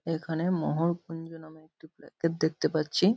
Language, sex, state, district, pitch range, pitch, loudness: Bengali, male, West Bengal, Kolkata, 160-170 Hz, 165 Hz, -30 LUFS